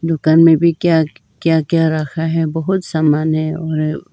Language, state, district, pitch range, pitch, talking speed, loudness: Hindi, Arunachal Pradesh, Lower Dibang Valley, 155-165 Hz, 160 Hz, 175 wpm, -15 LUFS